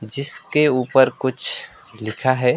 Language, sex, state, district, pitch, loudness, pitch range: Hindi, male, West Bengal, Alipurduar, 130 Hz, -17 LUFS, 125-140 Hz